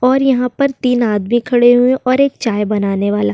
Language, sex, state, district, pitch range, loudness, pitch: Hindi, female, Uttar Pradesh, Jyotiba Phule Nagar, 210-260 Hz, -14 LUFS, 245 Hz